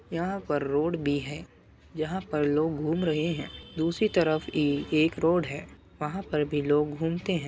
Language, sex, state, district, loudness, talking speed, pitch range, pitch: Hindi, male, Uttar Pradesh, Muzaffarnagar, -28 LUFS, 185 wpm, 150-170 Hz, 155 Hz